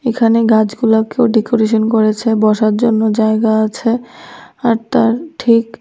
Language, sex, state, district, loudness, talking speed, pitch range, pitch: Bengali, female, Tripura, West Tripura, -13 LUFS, 115 wpm, 220-235 Hz, 225 Hz